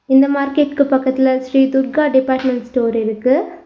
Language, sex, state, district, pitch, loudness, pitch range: Tamil, female, Tamil Nadu, Nilgiris, 265 Hz, -15 LUFS, 260-280 Hz